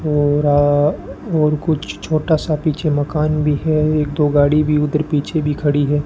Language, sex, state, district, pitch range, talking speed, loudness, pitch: Hindi, male, Rajasthan, Bikaner, 145-155 Hz, 180 wpm, -17 LUFS, 150 Hz